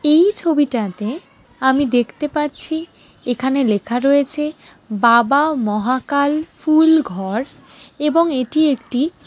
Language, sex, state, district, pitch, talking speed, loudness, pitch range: Bengali, female, West Bengal, Jalpaiguri, 280 Hz, 90 wpm, -17 LUFS, 240-305 Hz